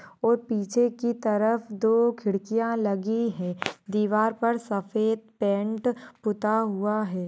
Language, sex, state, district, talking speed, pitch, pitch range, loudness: Hindi, female, Uttar Pradesh, Ghazipur, 125 wpm, 220 Hz, 205-230 Hz, -26 LUFS